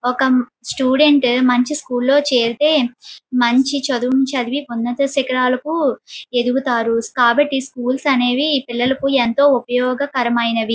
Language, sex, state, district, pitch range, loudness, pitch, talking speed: Telugu, female, Andhra Pradesh, Srikakulam, 245-275 Hz, -17 LUFS, 255 Hz, 100 wpm